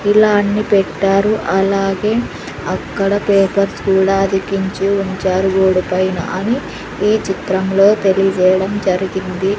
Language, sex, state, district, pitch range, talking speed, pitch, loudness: Telugu, female, Andhra Pradesh, Sri Satya Sai, 190-200 Hz, 100 wpm, 195 Hz, -15 LUFS